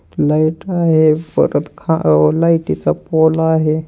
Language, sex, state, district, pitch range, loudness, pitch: Marathi, male, Maharashtra, Pune, 155-165 Hz, -14 LUFS, 160 Hz